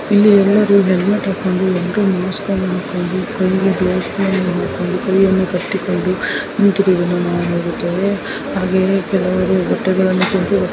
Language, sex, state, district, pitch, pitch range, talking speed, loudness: Kannada, female, Karnataka, Dharwad, 190 Hz, 185-195 Hz, 75 wpm, -16 LUFS